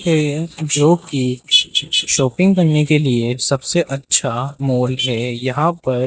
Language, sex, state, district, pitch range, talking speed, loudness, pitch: Hindi, male, Rajasthan, Jaipur, 125-155 Hz, 130 wpm, -16 LUFS, 140 Hz